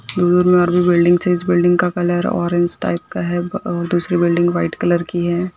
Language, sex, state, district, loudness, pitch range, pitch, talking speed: Hindi, female, Bihar, Bhagalpur, -16 LUFS, 175-180 Hz, 175 Hz, 170 wpm